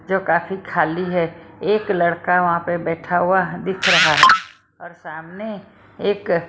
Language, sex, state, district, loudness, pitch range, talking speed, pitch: Hindi, female, Maharashtra, Mumbai Suburban, -18 LUFS, 170-190 Hz, 150 wpm, 175 Hz